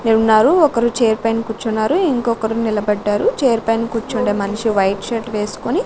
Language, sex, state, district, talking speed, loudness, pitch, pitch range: Telugu, female, Andhra Pradesh, Sri Satya Sai, 145 wpm, -17 LUFS, 225 Hz, 215-235 Hz